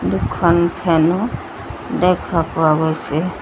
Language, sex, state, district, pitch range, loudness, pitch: Assamese, female, Assam, Sonitpur, 155-175 Hz, -17 LUFS, 165 Hz